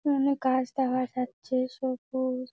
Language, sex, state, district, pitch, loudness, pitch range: Bengali, female, West Bengal, Jalpaiguri, 255 Hz, -29 LUFS, 255-265 Hz